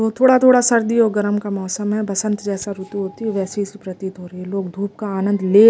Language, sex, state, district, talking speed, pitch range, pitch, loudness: Hindi, female, Delhi, New Delhi, 200 wpm, 195-215 Hz, 205 Hz, -18 LUFS